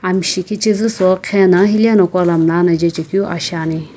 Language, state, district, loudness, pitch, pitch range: Sumi, Nagaland, Kohima, -14 LUFS, 185 Hz, 170-200 Hz